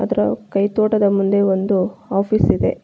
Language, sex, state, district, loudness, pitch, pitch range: Kannada, female, Karnataka, Bangalore, -18 LUFS, 200 Hz, 195-210 Hz